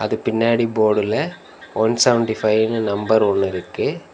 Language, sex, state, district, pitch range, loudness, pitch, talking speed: Tamil, male, Tamil Nadu, Nilgiris, 105-115 Hz, -19 LUFS, 110 Hz, 130 wpm